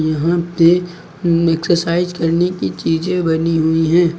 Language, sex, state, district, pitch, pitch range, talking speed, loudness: Hindi, male, Uttar Pradesh, Lucknow, 170 Hz, 160-175 Hz, 130 wpm, -16 LUFS